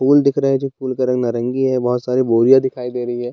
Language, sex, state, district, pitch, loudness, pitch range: Hindi, male, Bihar, Bhagalpur, 130 Hz, -17 LUFS, 125-135 Hz